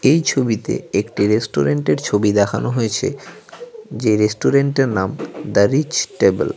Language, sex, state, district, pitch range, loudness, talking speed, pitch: Bengali, male, West Bengal, Cooch Behar, 105-140 Hz, -18 LUFS, 130 wpm, 110 Hz